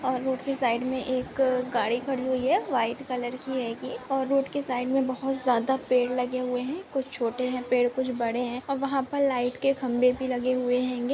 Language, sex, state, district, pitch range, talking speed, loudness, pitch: Hindi, female, Goa, North and South Goa, 250-265 Hz, 225 wpm, -27 LUFS, 255 Hz